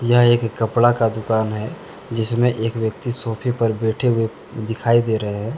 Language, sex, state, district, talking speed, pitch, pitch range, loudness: Hindi, male, Jharkhand, Deoghar, 185 wpm, 115 Hz, 110-120 Hz, -20 LUFS